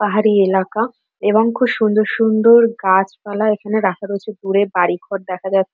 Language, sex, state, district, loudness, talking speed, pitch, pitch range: Bengali, female, West Bengal, Dakshin Dinajpur, -16 LUFS, 145 wpm, 210 Hz, 195-220 Hz